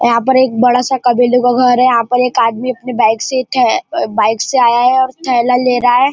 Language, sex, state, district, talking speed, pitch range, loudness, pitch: Hindi, male, Maharashtra, Nagpur, 265 wpm, 235-255 Hz, -12 LUFS, 245 Hz